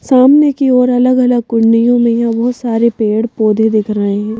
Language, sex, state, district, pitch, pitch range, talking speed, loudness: Hindi, female, Madhya Pradesh, Bhopal, 235 Hz, 220-250 Hz, 190 wpm, -11 LUFS